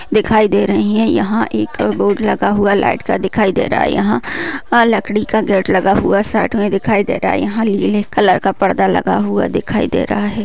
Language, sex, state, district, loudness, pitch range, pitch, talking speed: Hindi, female, Maharashtra, Sindhudurg, -14 LUFS, 195-215 Hz, 205 Hz, 235 wpm